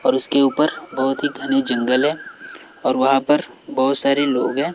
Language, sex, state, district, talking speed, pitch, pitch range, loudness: Hindi, male, Bihar, West Champaran, 190 wpm, 135 Hz, 130-140 Hz, -18 LUFS